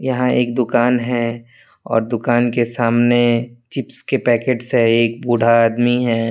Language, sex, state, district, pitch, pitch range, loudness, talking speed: Hindi, male, Tripura, West Tripura, 120 Hz, 115-125 Hz, -17 LUFS, 150 wpm